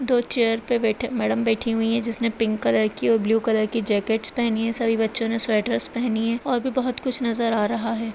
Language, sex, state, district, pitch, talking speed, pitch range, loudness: Kumaoni, female, Uttarakhand, Uttarkashi, 230 Hz, 235 wpm, 220-235 Hz, -21 LUFS